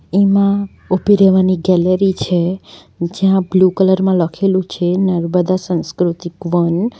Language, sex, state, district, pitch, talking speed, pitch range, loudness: Gujarati, female, Gujarat, Valsad, 185 Hz, 120 wpm, 175-190 Hz, -15 LUFS